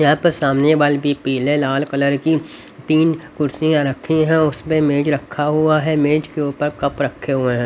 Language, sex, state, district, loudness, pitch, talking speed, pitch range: Hindi, male, Haryana, Rohtak, -17 LUFS, 145 Hz, 195 wpm, 140-155 Hz